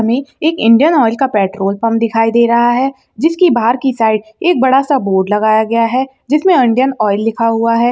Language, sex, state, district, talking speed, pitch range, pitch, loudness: Hindi, female, Bihar, Begusarai, 205 wpm, 225-270 Hz, 235 Hz, -12 LUFS